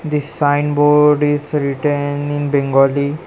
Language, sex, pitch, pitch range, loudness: English, male, 145 Hz, 145-150 Hz, -15 LUFS